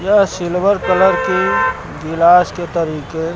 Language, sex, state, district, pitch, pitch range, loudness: Hindi, male, Uttar Pradesh, Lucknow, 175 Hz, 160-185 Hz, -15 LUFS